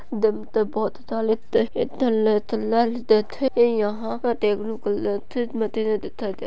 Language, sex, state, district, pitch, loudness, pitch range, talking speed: Hindi, female, Maharashtra, Sindhudurg, 220 Hz, -23 LUFS, 215-235 Hz, 140 wpm